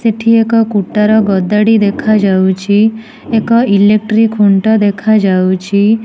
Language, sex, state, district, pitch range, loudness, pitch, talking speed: Odia, female, Odisha, Nuapada, 200-220 Hz, -10 LUFS, 210 Hz, 100 wpm